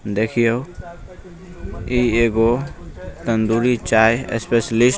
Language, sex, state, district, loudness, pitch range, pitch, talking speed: Maithili, male, Bihar, Begusarai, -18 LUFS, 110-120 Hz, 115 Hz, 85 wpm